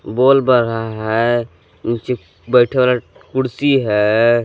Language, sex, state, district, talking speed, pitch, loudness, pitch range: Hindi, male, Jharkhand, Palamu, 120 wpm, 120 Hz, -16 LUFS, 110-125 Hz